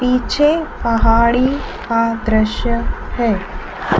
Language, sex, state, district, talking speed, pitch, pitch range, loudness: Hindi, female, Madhya Pradesh, Dhar, 75 wpm, 235 Hz, 225-250 Hz, -17 LUFS